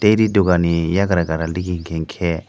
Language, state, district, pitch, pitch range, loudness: Kokborok, Tripura, Dhalai, 90 Hz, 85-95 Hz, -18 LUFS